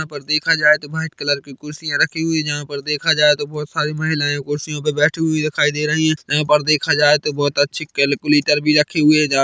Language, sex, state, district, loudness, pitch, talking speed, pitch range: Hindi, male, Chhattisgarh, Bilaspur, -17 LUFS, 150 Hz, 260 wpm, 145-155 Hz